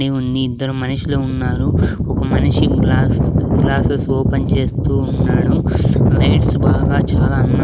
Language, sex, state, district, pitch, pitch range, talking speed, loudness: Telugu, male, Andhra Pradesh, Sri Satya Sai, 130 Hz, 130-135 Hz, 125 wpm, -15 LUFS